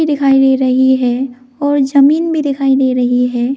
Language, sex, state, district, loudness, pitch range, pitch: Hindi, female, Arunachal Pradesh, Lower Dibang Valley, -12 LUFS, 255-280 Hz, 265 Hz